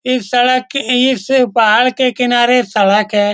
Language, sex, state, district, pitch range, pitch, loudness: Hindi, male, Bihar, Saran, 220-255 Hz, 250 Hz, -12 LUFS